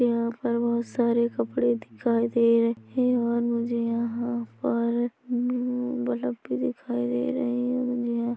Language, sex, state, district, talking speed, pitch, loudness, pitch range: Hindi, female, Chhattisgarh, Rajnandgaon, 160 wpm, 235 Hz, -26 LUFS, 230-240 Hz